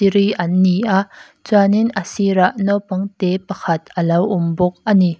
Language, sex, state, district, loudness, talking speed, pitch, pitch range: Mizo, female, Mizoram, Aizawl, -17 LUFS, 185 wpm, 190 Hz, 180-200 Hz